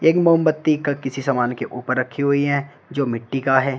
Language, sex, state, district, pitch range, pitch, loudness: Hindi, male, Uttar Pradesh, Shamli, 135-145 Hz, 140 Hz, -20 LUFS